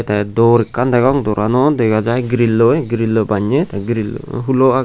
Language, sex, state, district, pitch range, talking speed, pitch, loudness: Chakma, male, Tripura, Unakoti, 110-130 Hz, 160 wpm, 115 Hz, -15 LUFS